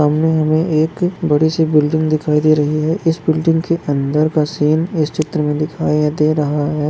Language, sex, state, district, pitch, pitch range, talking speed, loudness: Hindi, male, Maharashtra, Nagpur, 155 Hz, 150-160 Hz, 190 wpm, -16 LUFS